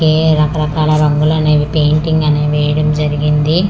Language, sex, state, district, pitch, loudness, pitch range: Telugu, female, Andhra Pradesh, Manyam, 150 Hz, -13 LUFS, 150-155 Hz